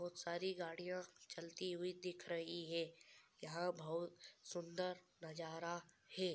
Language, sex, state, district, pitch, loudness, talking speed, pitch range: Hindi, male, Andhra Pradesh, Krishna, 175 Hz, -47 LUFS, 125 wpm, 170-180 Hz